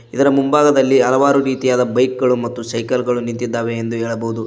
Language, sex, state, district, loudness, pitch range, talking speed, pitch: Kannada, male, Karnataka, Koppal, -16 LUFS, 115-135 Hz, 160 wpm, 125 Hz